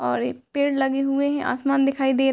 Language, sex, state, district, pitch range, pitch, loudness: Hindi, female, Bihar, Muzaffarpur, 255-275 Hz, 270 Hz, -22 LUFS